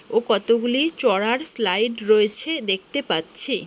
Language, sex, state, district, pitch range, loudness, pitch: Bengali, female, West Bengal, Malda, 215-285 Hz, -19 LUFS, 230 Hz